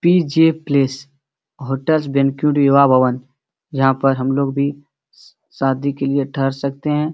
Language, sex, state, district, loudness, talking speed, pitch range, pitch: Hindi, male, Bihar, Supaul, -17 LUFS, 135 wpm, 135-145 Hz, 140 Hz